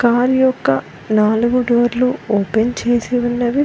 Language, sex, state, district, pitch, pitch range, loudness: Telugu, female, Telangana, Mahabubabad, 240 Hz, 220-245 Hz, -16 LUFS